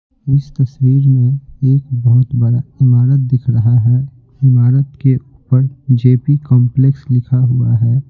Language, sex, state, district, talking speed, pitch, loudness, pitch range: Hindi, male, Bihar, Patna, 135 wpm, 130 Hz, -13 LUFS, 125-135 Hz